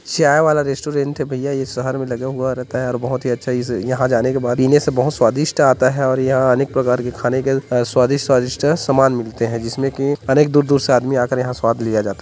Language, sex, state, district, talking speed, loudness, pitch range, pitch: Hindi, male, Chhattisgarh, Korba, 255 wpm, -17 LUFS, 125-140 Hz, 130 Hz